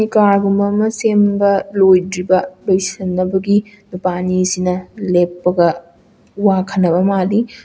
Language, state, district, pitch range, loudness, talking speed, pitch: Manipuri, Manipur, Imphal West, 180-200 Hz, -15 LUFS, 100 wpm, 190 Hz